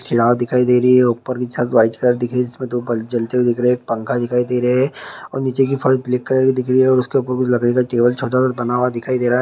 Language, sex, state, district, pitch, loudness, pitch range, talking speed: Hindi, male, Chhattisgarh, Bilaspur, 125 Hz, -17 LUFS, 120-130 Hz, 295 wpm